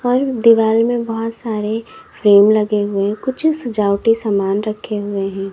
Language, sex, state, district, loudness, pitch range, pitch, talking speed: Hindi, female, Uttar Pradesh, Lalitpur, -16 LUFS, 205-235 Hz, 220 Hz, 150 wpm